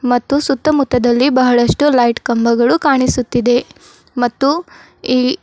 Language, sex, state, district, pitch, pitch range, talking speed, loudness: Kannada, female, Karnataka, Bidar, 255 Hz, 245-280 Hz, 100 wpm, -14 LUFS